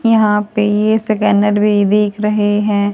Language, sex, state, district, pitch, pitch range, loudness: Hindi, female, Haryana, Rohtak, 210 Hz, 205-210 Hz, -14 LUFS